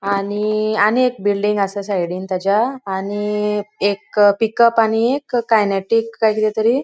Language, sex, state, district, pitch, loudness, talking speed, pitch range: Konkani, female, Goa, North and South Goa, 210 Hz, -17 LUFS, 140 wpm, 200-225 Hz